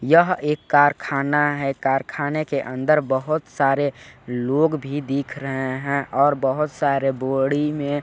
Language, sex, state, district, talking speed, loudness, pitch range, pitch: Hindi, male, Chhattisgarh, Balrampur, 140 wpm, -21 LUFS, 135-150 Hz, 140 Hz